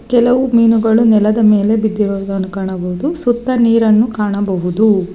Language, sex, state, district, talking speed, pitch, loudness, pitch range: Kannada, female, Karnataka, Bangalore, 105 wpm, 215 Hz, -13 LUFS, 200-230 Hz